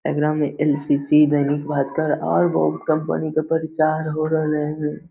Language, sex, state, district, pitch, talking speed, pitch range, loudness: Hindi, male, Bihar, Lakhisarai, 150 Hz, 165 wpm, 145-155 Hz, -20 LUFS